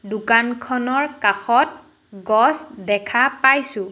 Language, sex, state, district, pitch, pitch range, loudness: Assamese, female, Assam, Sonitpur, 235 Hz, 205-270 Hz, -18 LUFS